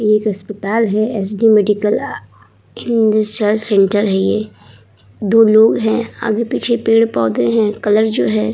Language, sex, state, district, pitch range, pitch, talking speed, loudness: Hindi, female, Uttar Pradesh, Muzaffarnagar, 195-225 Hz, 210 Hz, 140 wpm, -14 LUFS